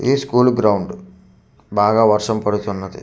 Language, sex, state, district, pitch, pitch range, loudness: Telugu, male, Andhra Pradesh, Manyam, 105 Hz, 100-115 Hz, -17 LUFS